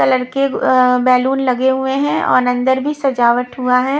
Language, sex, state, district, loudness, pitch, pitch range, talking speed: Hindi, female, Punjab, Kapurthala, -15 LUFS, 260 Hz, 250-270 Hz, 195 wpm